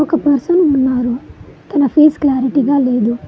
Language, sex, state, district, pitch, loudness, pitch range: Telugu, female, Telangana, Mahabubabad, 280 Hz, -13 LUFS, 260-300 Hz